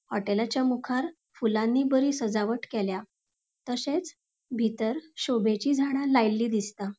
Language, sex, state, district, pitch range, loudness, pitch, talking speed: Konkani, female, Goa, North and South Goa, 215-270 Hz, -28 LUFS, 235 Hz, 105 wpm